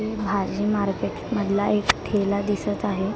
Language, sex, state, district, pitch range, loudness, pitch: Marathi, female, Maharashtra, Mumbai Suburban, 200-210 Hz, -24 LUFS, 205 Hz